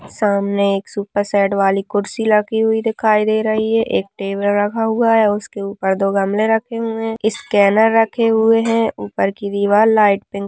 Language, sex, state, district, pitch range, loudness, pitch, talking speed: Hindi, female, Uttarakhand, Tehri Garhwal, 200-225 Hz, -16 LUFS, 210 Hz, 195 wpm